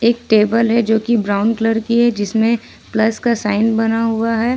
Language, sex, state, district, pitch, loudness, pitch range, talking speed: Hindi, female, Jharkhand, Ranchi, 225 Hz, -16 LUFS, 220-230 Hz, 210 wpm